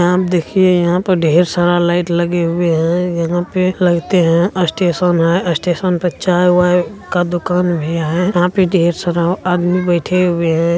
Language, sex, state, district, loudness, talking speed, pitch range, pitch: Hindi, male, Bihar, Araria, -14 LUFS, 185 wpm, 170-180 Hz, 175 Hz